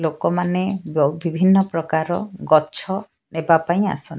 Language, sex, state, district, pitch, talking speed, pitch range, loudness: Odia, female, Odisha, Sambalpur, 170 Hz, 115 wpm, 160-190 Hz, -20 LUFS